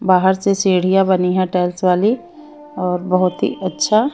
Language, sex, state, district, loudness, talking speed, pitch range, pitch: Hindi, female, Chhattisgarh, Raipur, -17 LUFS, 160 wpm, 180-210 Hz, 185 Hz